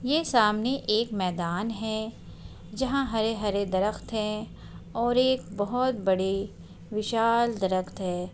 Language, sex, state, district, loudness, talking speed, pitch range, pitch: Hindi, female, Chhattisgarh, Raigarh, -27 LUFS, 115 wpm, 195-235 Hz, 215 Hz